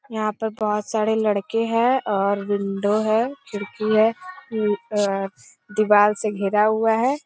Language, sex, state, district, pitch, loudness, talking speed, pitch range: Hindi, female, Bihar, Jamui, 215 Hz, -21 LUFS, 140 wpm, 205-225 Hz